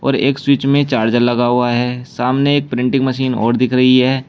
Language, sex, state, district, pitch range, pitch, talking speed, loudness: Hindi, male, Uttar Pradesh, Shamli, 120-135 Hz, 130 Hz, 210 wpm, -15 LUFS